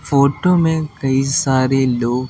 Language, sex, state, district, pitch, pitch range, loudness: Hindi, male, Delhi, New Delhi, 135 Hz, 130-155 Hz, -16 LUFS